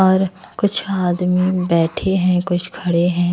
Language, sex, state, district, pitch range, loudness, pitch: Hindi, female, Himachal Pradesh, Shimla, 175-190 Hz, -18 LUFS, 180 Hz